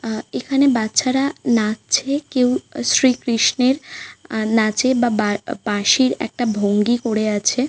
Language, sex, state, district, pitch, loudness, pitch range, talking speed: Bengali, female, West Bengal, Paschim Medinipur, 240 Hz, -18 LUFS, 215-260 Hz, 135 wpm